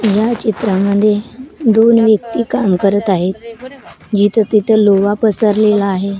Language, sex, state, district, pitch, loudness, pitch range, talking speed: Marathi, female, Maharashtra, Gondia, 215 Hz, -13 LUFS, 200-225 Hz, 115 wpm